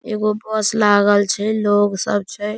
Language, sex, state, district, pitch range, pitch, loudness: Maithili, male, Bihar, Saharsa, 205-215 Hz, 210 Hz, -17 LUFS